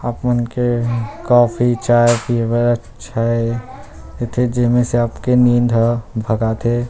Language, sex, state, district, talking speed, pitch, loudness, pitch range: Chhattisgarhi, male, Chhattisgarh, Rajnandgaon, 115 wpm, 120 Hz, -17 LUFS, 115-120 Hz